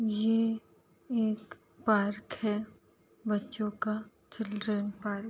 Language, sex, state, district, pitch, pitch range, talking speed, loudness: Hindi, female, Uttar Pradesh, Etah, 215 Hz, 210-220 Hz, 100 wpm, -33 LUFS